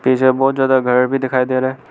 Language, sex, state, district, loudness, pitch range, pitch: Hindi, male, Arunachal Pradesh, Lower Dibang Valley, -15 LUFS, 130-135 Hz, 130 Hz